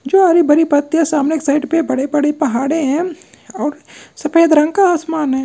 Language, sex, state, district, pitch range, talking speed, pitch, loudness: Hindi, male, Andhra Pradesh, Krishna, 290-330 Hz, 200 wpm, 305 Hz, -14 LUFS